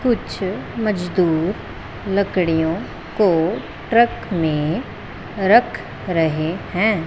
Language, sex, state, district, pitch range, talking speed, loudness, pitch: Hindi, female, Punjab, Pathankot, 160-205 Hz, 75 wpm, -20 LUFS, 180 Hz